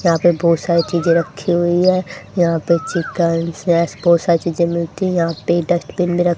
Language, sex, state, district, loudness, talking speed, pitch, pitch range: Hindi, female, Haryana, Charkhi Dadri, -17 LUFS, 215 wpm, 170 Hz, 170-175 Hz